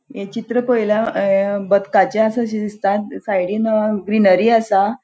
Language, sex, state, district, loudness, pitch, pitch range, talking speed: Konkani, female, Goa, North and South Goa, -17 LUFS, 210 Hz, 195-225 Hz, 130 wpm